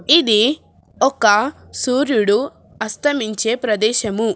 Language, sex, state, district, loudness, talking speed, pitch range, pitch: Telugu, female, Telangana, Hyderabad, -17 LUFS, 70 wpm, 215-265 Hz, 225 Hz